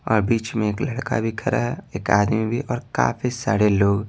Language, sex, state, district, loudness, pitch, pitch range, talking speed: Hindi, male, Bihar, Patna, -22 LUFS, 115 Hz, 105-120 Hz, 235 wpm